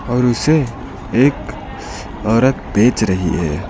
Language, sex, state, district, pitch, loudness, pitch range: Hindi, male, Uttar Pradesh, Lucknow, 120 Hz, -16 LUFS, 100-130 Hz